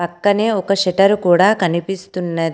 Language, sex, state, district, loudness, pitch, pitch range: Telugu, female, Telangana, Komaram Bheem, -16 LUFS, 185 Hz, 175-200 Hz